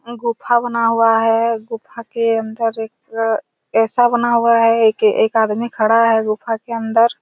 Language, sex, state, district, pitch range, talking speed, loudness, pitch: Hindi, female, Chhattisgarh, Raigarh, 225-235 Hz, 175 wpm, -16 LUFS, 230 Hz